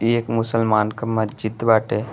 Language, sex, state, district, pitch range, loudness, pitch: Bhojpuri, male, Uttar Pradesh, Gorakhpur, 110-115 Hz, -20 LUFS, 115 Hz